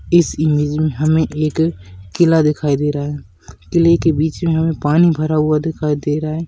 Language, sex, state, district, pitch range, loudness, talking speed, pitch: Hindi, male, Rajasthan, Churu, 150-160 Hz, -16 LUFS, 195 wpm, 155 Hz